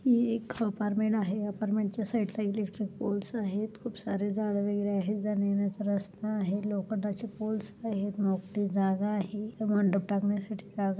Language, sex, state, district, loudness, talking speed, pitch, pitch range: Marathi, female, Maharashtra, Pune, -31 LUFS, 155 wpm, 205 Hz, 200-215 Hz